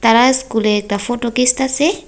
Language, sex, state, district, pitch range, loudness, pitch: Bengali, female, Tripura, West Tripura, 225-260 Hz, -15 LUFS, 245 Hz